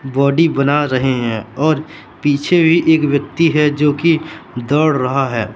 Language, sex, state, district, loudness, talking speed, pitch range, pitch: Hindi, male, Madhya Pradesh, Katni, -15 LUFS, 160 wpm, 135-155 Hz, 145 Hz